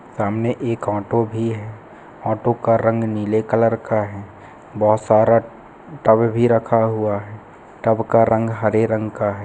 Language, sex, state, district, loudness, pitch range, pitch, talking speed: Hindi, male, Chhattisgarh, Bilaspur, -19 LUFS, 105-115 Hz, 110 Hz, 165 wpm